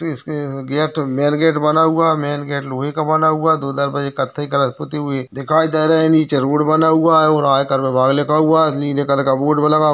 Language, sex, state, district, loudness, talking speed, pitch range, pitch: Hindi, male, Uttar Pradesh, Jyotiba Phule Nagar, -16 LUFS, 260 wpm, 140-155 Hz, 150 Hz